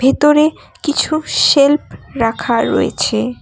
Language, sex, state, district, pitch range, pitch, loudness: Bengali, female, West Bengal, Cooch Behar, 265-300 Hz, 290 Hz, -14 LUFS